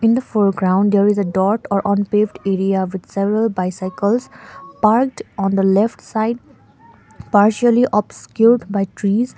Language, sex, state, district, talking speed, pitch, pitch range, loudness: English, female, Sikkim, Gangtok, 140 wpm, 205 Hz, 195-225 Hz, -17 LUFS